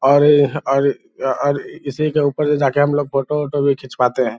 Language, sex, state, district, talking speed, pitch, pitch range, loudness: Hindi, male, Bihar, Lakhisarai, 180 wpm, 140 Hz, 135-145 Hz, -17 LUFS